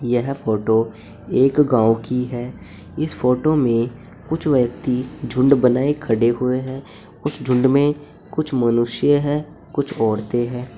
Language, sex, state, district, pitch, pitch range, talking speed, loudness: Hindi, male, Uttar Pradesh, Saharanpur, 125 Hz, 120-140 Hz, 140 wpm, -19 LUFS